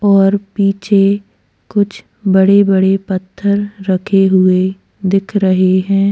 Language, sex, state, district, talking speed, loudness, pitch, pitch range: Hindi, female, Chhattisgarh, Korba, 115 wpm, -13 LUFS, 195 Hz, 190-200 Hz